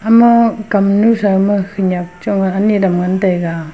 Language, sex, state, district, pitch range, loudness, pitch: Wancho, female, Arunachal Pradesh, Longding, 185-215 Hz, -13 LUFS, 200 Hz